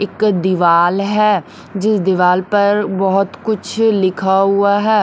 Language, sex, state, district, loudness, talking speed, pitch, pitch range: Hindi, female, Haryana, Rohtak, -14 LUFS, 130 wpm, 200 Hz, 190-210 Hz